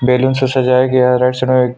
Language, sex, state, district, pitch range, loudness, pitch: Hindi, male, Chhattisgarh, Sukma, 125-130 Hz, -13 LUFS, 130 Hz